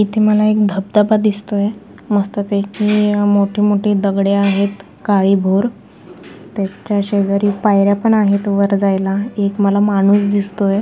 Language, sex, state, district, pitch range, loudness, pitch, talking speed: Marathi, female, Maharashtra, Sindhudurg, 200-210 Hz, -15 LUFS, 200 Hz, 135 wpm